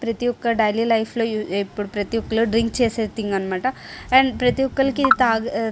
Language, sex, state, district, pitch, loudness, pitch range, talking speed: Telugu, female, Andhra Pradesh, Srikakulam, 230 Hz, -20 LUFS, 215-245 Hz, 180 wpm